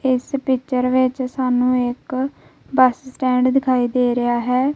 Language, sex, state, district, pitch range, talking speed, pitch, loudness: Punjabi, female, Punjab, Kapurthala, 250-260 Hz, 140 wpm, 255 Hz, -19 LUFS